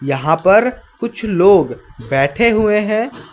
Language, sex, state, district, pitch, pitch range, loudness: Hindi, male, West Bengal, Alipurduar, 200 Hz, 140-225 Hz, -14 LUFS